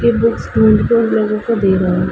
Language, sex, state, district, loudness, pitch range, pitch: Hindi, female, Uttar Pradesh, Ghazipur, -14 LUFS, 180-230 Hz, 215 Hz